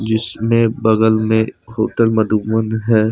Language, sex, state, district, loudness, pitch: Hindi, male, Jharkhand, Deoghar, -16 LUFS, 110 Hz